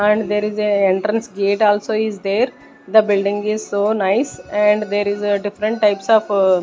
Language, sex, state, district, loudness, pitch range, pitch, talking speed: English, female, Maharashtra, Gondia, -17 LUFS, 200-215 Hz, 210 Hz, 200 wpm